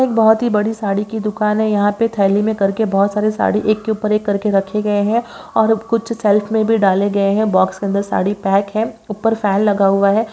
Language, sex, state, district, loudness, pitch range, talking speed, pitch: Hindi, female, Bihar, Saharsa, -16 LUFS, 200-220 Hz, 245 wpm, 210 Hz